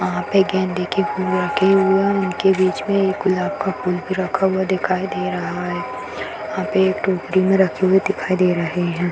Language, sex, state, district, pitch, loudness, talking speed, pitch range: Hindi, female, Bihar, Sitamarhi, 190 Hz, -19 LUFS, 225 wpm, 180-195 Hz